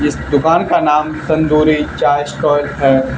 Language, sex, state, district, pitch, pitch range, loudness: Hindi, male, Haryana, Charkhi Dadri, 150 Hz, 145-155 Hz, -14 LUFS